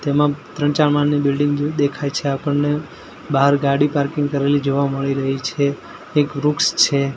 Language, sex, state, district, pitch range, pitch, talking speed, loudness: Gujarati, male, Gujarat, Gandhinagar, 140-145 Hz, 145 Hz, 170 wpm, -19 LUFS